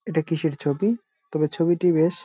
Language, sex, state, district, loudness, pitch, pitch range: Bengali, male, West Bengal, Jalpaiguri, -23 LUFS, 165 Hz, 160-200 Hz